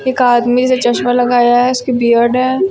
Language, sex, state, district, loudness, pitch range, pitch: Hindi, female, Uttar Pradesh, Lucknow, -12 LUFS, 240-255 Hz, 245 Hz